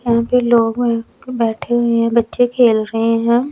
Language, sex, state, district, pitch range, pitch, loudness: Hindi, female, Chandigarh, Chandigarh, 230-245 Hz, 235 Hz, -15 LUFS